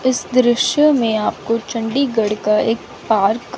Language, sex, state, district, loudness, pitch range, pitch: Hindi, female, Chandigarh, Chandigarh, -17 LUFS, 220-255 Hz, 230 Hz